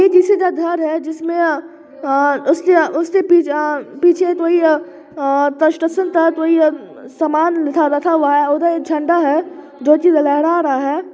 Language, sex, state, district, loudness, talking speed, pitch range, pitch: Hindi, male, Bihar, Muzaffarpur, -15 LUFS, 140 wpm, 295-340 Hz, 315 Hz